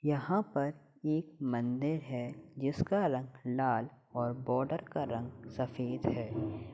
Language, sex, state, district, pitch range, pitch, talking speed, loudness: Hindi, male, Uttar Pradesh, Hamirpur, 120-150 Hz, 130 Hz, 125 wpm, -35 LUFS